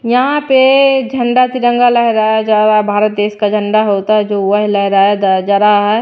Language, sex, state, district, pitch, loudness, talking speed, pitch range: Hindi, female, Bihar, Patna, 215 Hz, -11 LUFS, 200 wpm, 205-245 Hz